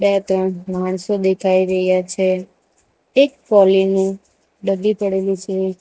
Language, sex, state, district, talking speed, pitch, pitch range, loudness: Gujarati, female, Gujarat, Valsad, 125 wpm, 190 Hz, 185-195 Hz, -17 LUFS